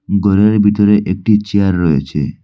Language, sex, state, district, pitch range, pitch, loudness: Bengali, male, Assam, Hailakandi, 90-105 Hz, 100 Hz, -13 LUFS